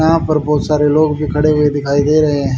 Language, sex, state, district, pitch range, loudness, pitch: Hindi, male, Haryana, Jhajjar, 145-155 Hz, -14 LUFS, 150 Hz